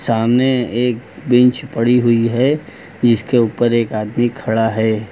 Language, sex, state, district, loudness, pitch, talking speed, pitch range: Hindi, male, Uttar Pradesh, Lucknow, -16 LUFS, 120 Hz, 140 wpm, 115-125 Hz